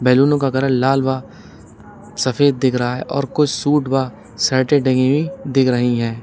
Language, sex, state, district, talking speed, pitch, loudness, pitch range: Hindi, male, Uttar Pradesh, Lalitpur, 185 wpm, 130 Hz, -17 LUFS, 125-140 Hz